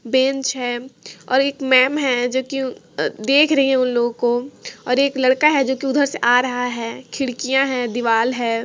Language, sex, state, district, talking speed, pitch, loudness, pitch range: Hindi, female, Jharkhand, Sahebganj, 185 wpm, 260 Hz, -18 LUFS, 245-270 Hz